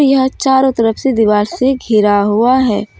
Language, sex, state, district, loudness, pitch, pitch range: Hindi, female, Jharkhand, Deoghar, -12 LUFS, 235 Hz, 210-265 Hz